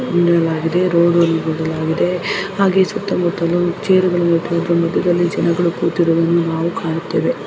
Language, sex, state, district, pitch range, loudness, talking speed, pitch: Kannada, female, Karnataka, Dharwad, 165-175 Hz, -16 LUFS, 95 wpm, 170 Hz